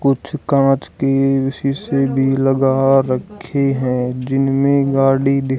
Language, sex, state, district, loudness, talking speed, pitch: Hindi, male, Haryana, Charkhi Dadri, -16 LUFS, 130 wpm, 135 Hz